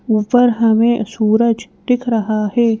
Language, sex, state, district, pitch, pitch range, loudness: Hindi, female, Madhya Pradesh, Bhopal, 230 Hz, 220-235 Hz, -15 LUFS